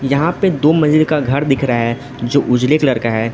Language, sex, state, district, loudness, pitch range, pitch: Hindi, male, Arunachal Pradesh, Lower Dibang Valley, -15 LUFS, 125-155 Hz, 140 Hz